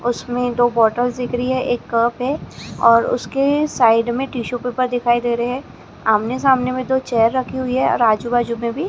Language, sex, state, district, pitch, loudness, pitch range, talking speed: Hindi, female, Maharashtra, Gondia, 245 Hz, -18 LUFS, 235-255 Hz, 215 wpm